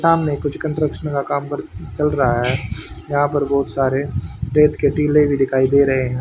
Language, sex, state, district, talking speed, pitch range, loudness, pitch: Hindi, male, Haryana, Charkhi Dadri, 195 wpm, 130-145 Hz, -18 LUFS, 140 Hz